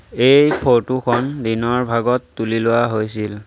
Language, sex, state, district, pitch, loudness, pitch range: Assamese, male, Assam, Sonitpur, 120 Hz, -17 LUFS, 115-125 Hz